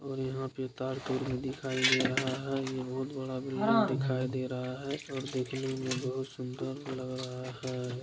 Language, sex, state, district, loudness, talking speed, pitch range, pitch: Hindi, male, Bihar, Araria, -33 LUFS, 170 wpm, 130-135 Hz, 130 Hz